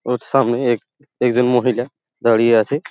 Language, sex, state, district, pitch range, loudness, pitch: Bengali, male, West Bengal, Paschim Medinipur, 120-130 Hz, -17 LUFS, 125 Hz